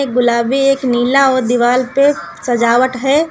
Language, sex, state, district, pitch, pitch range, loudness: Hindi, female, Uttar Pradesh, Lucknow, 255 Hz, 240-275 Hz, -13 LUFS